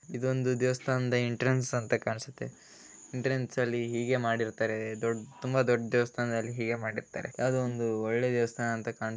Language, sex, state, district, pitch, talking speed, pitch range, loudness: Kannada, male, Karnataka, Raichur, 120 Hz, 135 wpm, 115-130 Hz, -31 LUFS